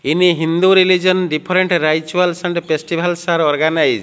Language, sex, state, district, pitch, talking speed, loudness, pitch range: English, male, Odisha, Malkangiri, 175 Hz, 135 wpm, -15 LUFS, 160-180 Hz